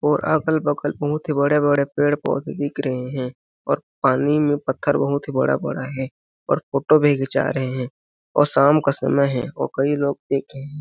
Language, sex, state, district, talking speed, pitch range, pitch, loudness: Hindi, male, Chhattisgarh, Balrampur, 200 wpm, 135-145 Hz, 140 Hz, -21 LUFS